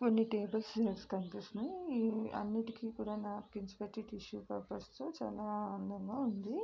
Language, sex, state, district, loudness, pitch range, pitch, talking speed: Telugu, female, Andhra Pradesh, Srikakulam, -40 LUFS, 205-225 Hz, 210 Hz, 115 wpm